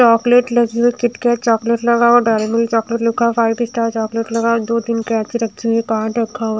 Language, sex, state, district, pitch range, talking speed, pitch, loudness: Hindi, female, Bihar, Katihar, 225-235 Hz, 245 wpm, 230 Hz, -16 LUFS